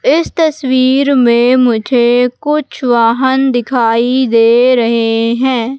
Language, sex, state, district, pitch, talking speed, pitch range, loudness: Hindi, female, Madhya Pradesh, Katni, 250 Hz, 105 wpm, 235-265 Hz, -11 LUFS